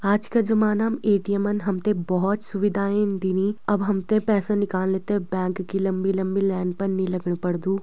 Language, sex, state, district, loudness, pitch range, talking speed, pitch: Garhwali, female, Uttarakhand, Uttarkashi, -23 LUFS, 190-205 Hz, 175 wpm, 195 Hz